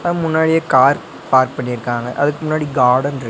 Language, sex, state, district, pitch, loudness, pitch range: Tamil, male, Tamil Nadu, Nilgiris, 140 Hz, -16 LUFS, 125-155 Hz